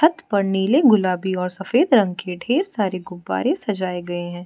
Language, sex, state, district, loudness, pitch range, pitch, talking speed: Hindi, female, Arunachal Pradesh, Lower Dibang Valley, -20 LUFS, 180-235 Hz, 190 Hz, 190 wpm